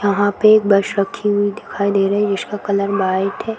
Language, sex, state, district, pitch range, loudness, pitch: Hindi, female, Uttar Pradesh, Varanasi, 200-205 Hz, -17 LUFS, 200 Hz